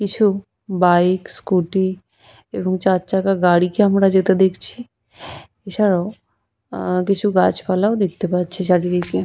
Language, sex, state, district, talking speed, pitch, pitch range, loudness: Bengali, female, West Bengal, Purulia, 110 wpm, 190 Hz, 180-195 Hz, -18 LUFS